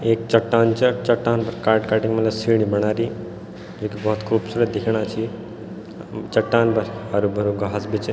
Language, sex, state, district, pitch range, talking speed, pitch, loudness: Garhwali, male, Uttarakhand, Tehri Garhwal, 105-115 Hz, 155 wpm, 110 Hz, -21 LUFS